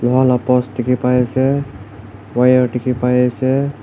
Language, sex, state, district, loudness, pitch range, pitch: Nagamese, male, Nagaland, Kohima, -16 LUFS, 120-130 Hz, 125 Hz